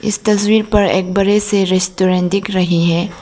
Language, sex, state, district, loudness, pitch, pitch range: Hindi, female, Arunachal Pradesh, Lower Dibang Valley, -14 LUFS, 195 Hz, 185-205 Hz